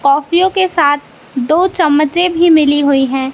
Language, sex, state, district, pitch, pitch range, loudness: Hindi, female, Madhya Pradesh, Katni, 300 Hz, 280-345 Hz, -12 LUFS